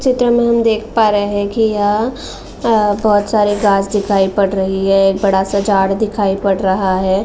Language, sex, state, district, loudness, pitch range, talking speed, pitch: Hindi, female, Uttar Pradesh, Jalaun, -14 LUFS, 195-220 Hz, 205 wpm, 205 Hz